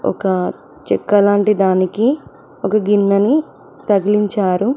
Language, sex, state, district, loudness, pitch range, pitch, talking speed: Telugu, female, Telangana, Mahabubabad, -16 LUFS, 195-210 Hz, 205 Hz, 90 wpm